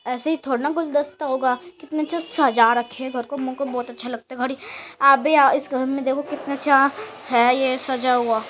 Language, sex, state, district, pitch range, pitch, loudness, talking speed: Hindi, female, Uttar Pradesh, Hamirpur, 250-290 Hz, 265 Hz, -21 LUFS, 235 wpm